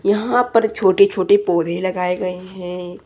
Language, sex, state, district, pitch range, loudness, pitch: Hindi, male, Jharkhand, Deoghar, 180-205 Hz, -17 LUFS, 185 Hz